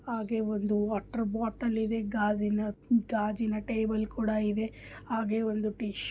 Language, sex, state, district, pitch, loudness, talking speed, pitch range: Kannada, female, Karnataka, Bijapur, 220 Hz, -31 LUFS, 135 wpm, 210-225 Hz